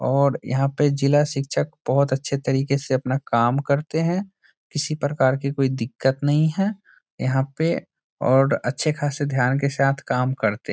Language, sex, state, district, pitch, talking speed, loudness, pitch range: Hindi, male, Bihar, Saran, 140 Hz, 175 wpm, -22 LUFS, 130-150 Hz